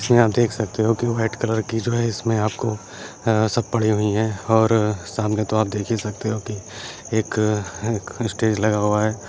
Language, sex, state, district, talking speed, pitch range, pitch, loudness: Hindi, male, Uttar Pradesh, Gorakhpur, 215 wpm, 105-115 Hz, 110 Hz, -21 LUFS